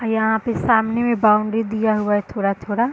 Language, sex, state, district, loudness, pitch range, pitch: Hindi, female, Bihar, Sitamarhi, -19 LUFS, 210-225 Hz, 220 Hz